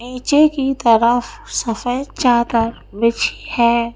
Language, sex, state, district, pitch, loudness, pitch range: Hindi, female, Madhya Pradesh, Bhopal, 235 Hz, -17 LUFS, 230-265 Hz